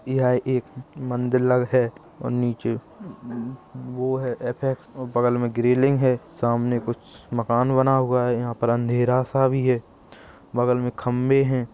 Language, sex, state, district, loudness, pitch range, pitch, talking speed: Hindi, male, Uttar Pradesh, Hamirpur, -23 LUFS, 120-130 Hz, 125 Hz, 180 wpm